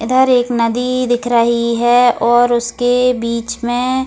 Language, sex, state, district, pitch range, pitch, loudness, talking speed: Hindi, female, Goa, North and South Goa, 235-250 Hz, 240 Hz, -14 LUFS, 160 wpm